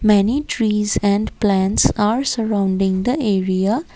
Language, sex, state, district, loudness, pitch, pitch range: English, female, Assam, Kamrup Metropolitan, -18 LUFS, 210 Hz, 195-230 Hz